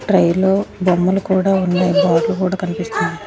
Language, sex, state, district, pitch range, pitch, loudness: Telugu, female, Andhra Pradesh, Sri Satya Sai, 180-190 Hz, 185 Hz, -16 LUFS